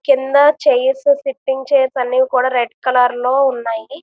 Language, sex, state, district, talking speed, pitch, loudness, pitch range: Telugu, female, Andhra Pradesh, Visakhapatnam, 150 wpm, 265 Hz, -15 LUFS, 250-275 Hz